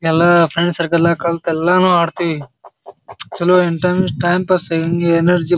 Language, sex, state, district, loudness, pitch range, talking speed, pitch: Kannada, male, Karnataka, Bijapur, -15 LUFS, 165-180 Hz, 150 wpm, 170 Hz